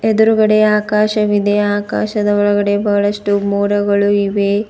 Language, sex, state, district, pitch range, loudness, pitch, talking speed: Kannada, female, Karnataka, Bidar, 205-210 Hz, -14 LUFS, 205 Hz, 90 wpm